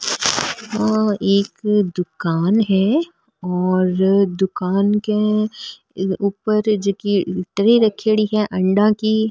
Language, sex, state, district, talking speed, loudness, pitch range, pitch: Rajasthani, female, Rajasthan, Nagaur, 90 wpm, -18 LUFS, 190-215 Hz, 205 Hz